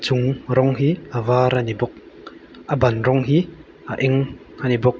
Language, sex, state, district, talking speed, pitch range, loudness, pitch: Mizo, male, Mizoram, Aizawl, 180 wpm, 125-135 Hz, -20 LUFS, 130 Hz